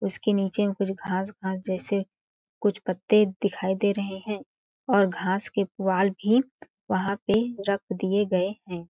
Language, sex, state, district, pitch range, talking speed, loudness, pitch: Hindi, female, Chhattisgarh, Balrampur, 190-205 Hz, 160 wpm, -26 LUFS, 200 Hz